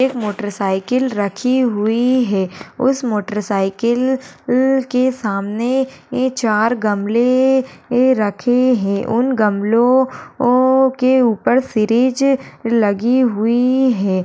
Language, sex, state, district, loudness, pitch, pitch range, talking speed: Hindi, female, Uttar Pradesh, Budaun, -16 LUFS, 245 Hz, 210-255 Hz, 115 wpm